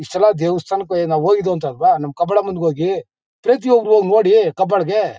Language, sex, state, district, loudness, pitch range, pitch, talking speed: Kannada, male, Karnataka, Mysore, -16 LUFS, 175-220 Hz, 200 Hz, 160 wpm